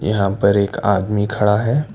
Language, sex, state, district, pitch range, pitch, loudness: Hindi, male, Karnataka, Bangalore, 100-105 Hz, 105 Hz, -17 LUFS